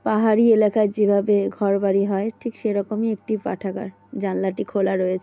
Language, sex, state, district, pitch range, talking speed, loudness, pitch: Bengali, female, West Bengal, Jalpaiguri, 195-215 Hz, 140 wpm, -21 LUFS, 205 Hz